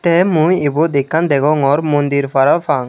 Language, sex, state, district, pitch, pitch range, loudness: Chakma, male, Tripura, Unakoti, 145 Hz, 140-160 Hz, -14 LUFS